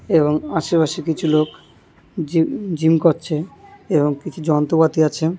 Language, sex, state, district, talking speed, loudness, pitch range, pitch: Bengali, male, West Bengal, North 24 Parganas, 120 wpm, -19 LUFS, 155-165 Hz, 160 Hz